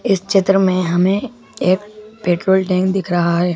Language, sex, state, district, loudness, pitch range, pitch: Hindi, male, Madhya Pradesh, Bhopal, -16 LUFS, 180-205 Hz, 190 Hz